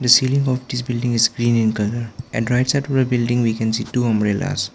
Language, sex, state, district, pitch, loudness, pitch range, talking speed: English, male, Arunachal Pradesh, Lower Dibang Valley, 120 Hz, -19 LUFS, 115-125 Hz, 250 wpm